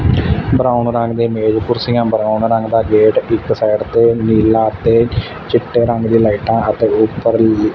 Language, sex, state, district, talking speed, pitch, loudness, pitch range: Punjabi, male, Punjab, Fazilka, 160 wpm, 115 Hz, -14 LUFS, 110-115 Hz